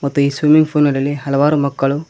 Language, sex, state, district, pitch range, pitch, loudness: Kannada, male, Karnataka, Koppal, 140-150 Hz, 145 Hz, -15 LUFS